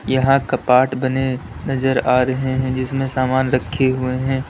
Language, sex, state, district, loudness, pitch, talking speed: Hindi, male, Uttar Pradesh, Lalitpur, -18 LUFS, 130 Hz, 160 wpm